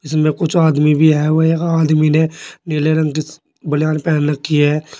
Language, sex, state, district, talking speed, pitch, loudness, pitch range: Hindi, male, Uttar Pradesh, Saharanpur, 190 wpm, 155 Hz, -15 LUFS, 150-160 Hz